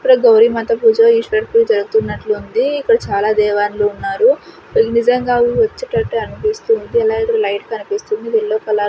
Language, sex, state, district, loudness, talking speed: Telugu, female, Andhra Pradesh, Sri Satya Sai, -15 LUFS, 155 wpm